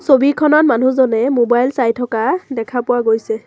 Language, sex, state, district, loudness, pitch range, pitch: Assamese, female, Assam, Sonitpur, -15 LUFS, 230-270 Hz, 245 Hz